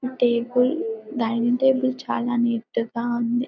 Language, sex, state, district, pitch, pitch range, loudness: Telugu, female, Telangana, Karimnagar, 245 Hz, 235-255 Hz, -23 LUFS